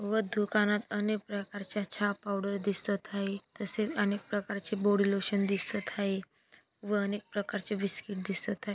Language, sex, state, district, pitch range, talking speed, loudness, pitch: Marathi, female, Maharashtra, Dhule, 200-210 Hz, 145 wpm, -32 LUFS, 205 Hz